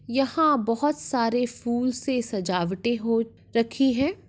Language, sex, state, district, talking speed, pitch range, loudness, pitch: Hindi, female, Uttar Pradesh, Etah, 125 wpm, 230-270 Hz, -25 LUFS, 240 Hz